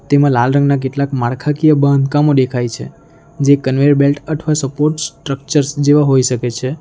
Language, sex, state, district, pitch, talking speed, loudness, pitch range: Gujarati, male, Gujarat, Valsad, 140 Hz, 160 wpm, -14 LUFS, 130-145 Hz